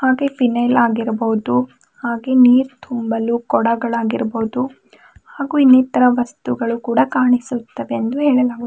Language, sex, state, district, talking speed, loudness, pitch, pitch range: Kannada, female, Karnataka, Bidar, 95 wpm, -17 LUFS, 240 Hz, 230-255 Hz